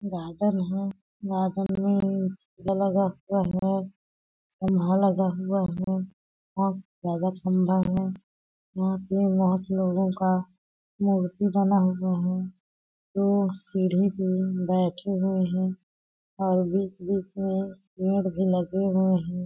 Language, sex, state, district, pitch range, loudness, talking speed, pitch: Hindi, female, Chhattisgarh, Balrampur, 185-195 Hz, -26 LUFS, 110 wpm, 190 Hz